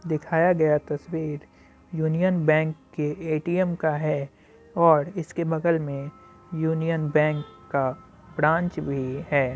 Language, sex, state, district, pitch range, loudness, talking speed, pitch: Hindi, male, Bihar, Muzaffarpur, 150-165 Hz, -25 LUFS, 120 wpm, 155 Hz